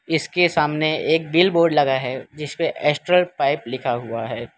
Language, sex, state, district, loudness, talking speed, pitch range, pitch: Hindi, male, Gujarat, Valsad, -20 LUFS, 185 wpm, 130-165 Hz, 150 Hz